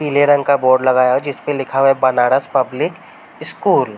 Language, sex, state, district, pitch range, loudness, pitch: Hindi, male, Uttar Pradesh, Varanasi, 130-145 Hz, -15 LUFS, 135 Hz